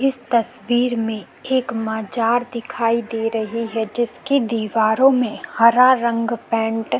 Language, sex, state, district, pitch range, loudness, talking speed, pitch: Hindi, female, Uttarakhand, Tehri Garhwal, 225-245 Hz, -19 LUFS, 135 wpm, 230 Hz